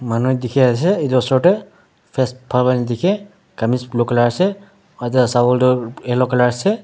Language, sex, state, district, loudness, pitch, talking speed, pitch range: Nagamese, male, Nagaland, Dimapur, -17 LUFS, 125 Hz, 185 wpm, 120-175 Hz